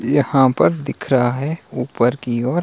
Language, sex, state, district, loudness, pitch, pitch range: Hindi, male, Himachal Pradesh, Shimla, -18 LUFS, 135 Hz, 125-150 Hz